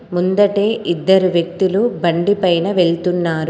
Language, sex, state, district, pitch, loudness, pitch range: Telugu, female, Telangana, Komaram Bheem, 180 Hz, -16 LUFS, 170-200 Hz